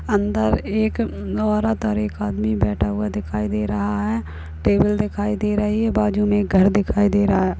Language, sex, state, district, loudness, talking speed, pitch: Hindi, female, Uttar Pradesh, Muzaffarnagar, -20 LUFS, 205 wpm, 190 Hz